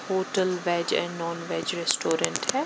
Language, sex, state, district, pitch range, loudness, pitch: Hindi, female, Punjab, Pathankot, 170-190 Hz, -26 LUFS, 175 Hz